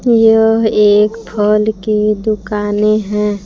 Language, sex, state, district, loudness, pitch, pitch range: Hindi, female, Jharkhand, Palamu, -13 LUFS, 210 Hz, 210-220 Hz